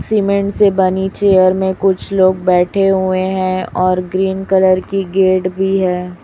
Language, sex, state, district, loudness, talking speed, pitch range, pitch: Hindi, female, Chhattisgarh, Raipur, -14 LUFS, 165 wpm, 185-195 Hz, 190 Hz